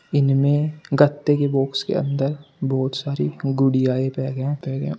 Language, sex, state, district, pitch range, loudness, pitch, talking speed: Hindi, male, Uttar Pradesh, Shamli, 135-145 Hz, -21 LUFS, 135 Hz, 120 wpm